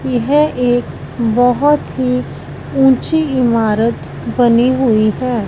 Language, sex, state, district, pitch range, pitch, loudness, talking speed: Hindi, female, Punjab, Fazilka, 215-260 Hz, 245 Hz, -14 LUFS, 100 wpm